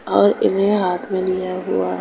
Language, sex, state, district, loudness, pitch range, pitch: Hindi, female, Uttar Pradesh, Jalaun, -19 LUFS, 175-190 Hz, 185 Hz